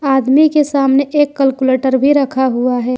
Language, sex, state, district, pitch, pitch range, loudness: Hindi, female, Jharkhand, Ranchi, 270 Hz, 260-285 Hz, -13 LUFS